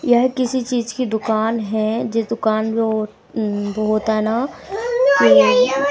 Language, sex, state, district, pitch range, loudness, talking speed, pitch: Hindi, female, Himachal Pradesh, Shimla, 220-250 Hz, -18 LUFS, 150 wpm, 230 Hz